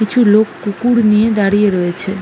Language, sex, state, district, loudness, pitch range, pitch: Bengali, female, West Bengal, North 24 Parganas, -13 LUFS, 200-220 Hz, 210 Hz